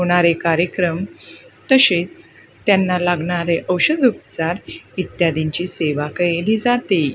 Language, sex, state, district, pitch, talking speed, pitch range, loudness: Marathi, female, Maharashtra, Gondia, 175 Hz, 90 wpm, 170-190 Hz, -18 LUFS